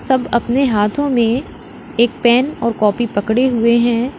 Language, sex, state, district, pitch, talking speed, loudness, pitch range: Hindi, female, Uttar Pradesh, Lalitpur, 235 Hz, 155 wpm, -15 LUFS, 230-255 Hz